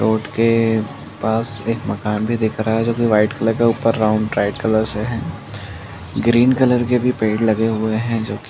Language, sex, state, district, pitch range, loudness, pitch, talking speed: Hindi, male, Uttar Pradesh, Muzaffarnagar, 105-115 Hz, -18 LUFS, 110 Hz, 205 wpm